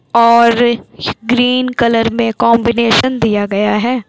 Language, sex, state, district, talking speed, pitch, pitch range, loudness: Hindi, female, Bihar, Jamui, 115 wpm, 235 Hz, 225-240 Hz, -12 LUFS